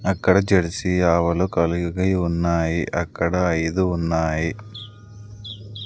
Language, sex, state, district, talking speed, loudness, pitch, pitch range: Telugu, male, Andhra Pradesh, Sri Satya Sai, 80 wpm, -21 LUFS, 90 Hz, 85-100 Hz